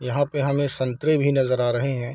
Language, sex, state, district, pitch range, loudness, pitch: Hindi, male, Bihar, Darbhanga, 125-140 Hz, -22 LUFS, 135 Hz